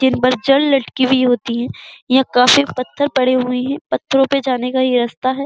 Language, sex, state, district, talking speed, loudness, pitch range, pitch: Hindi, female, Uttar Pradesh, Jyotiba Phule Nagar, 175 wpm, -15 LUFS, 250-270 Hz, 260 Hz